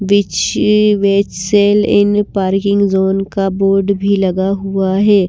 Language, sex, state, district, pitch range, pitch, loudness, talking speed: Hindi, female, Himachal Pradesh, Shimla, 195-205 Hz, 200 Hz, -13 LUFS, 100 wpm